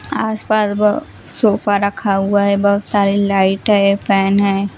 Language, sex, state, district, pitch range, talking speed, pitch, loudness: Hindi, female, Bihar, West Champaran, 200-210 Hz, 150 wpm, 200 Hz, -15 LUFS